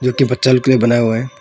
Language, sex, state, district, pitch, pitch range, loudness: Hindi, male, Arunachal Pradesh, Longding, 125 Hz, 120-130 Hz, -14 LUFS